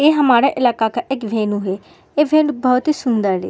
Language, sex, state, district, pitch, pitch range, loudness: Hindi, female, Uttar Pradesh, Muzaffarnagar, 245 Hz, 220-290 Hz, -17 LUFS